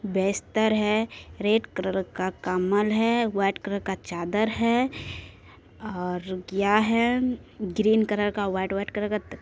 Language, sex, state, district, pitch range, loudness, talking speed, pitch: Maithili, female, Bihar, Supaul, 190-220 Hz, -25 LUFS, 145 wpm, 205 Hz